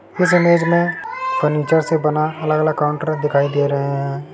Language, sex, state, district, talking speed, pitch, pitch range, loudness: Hindi, male, Bihar, Sitamarhi, 165 wpm, 155 Hz, 150-170 Hz, -17 LUFS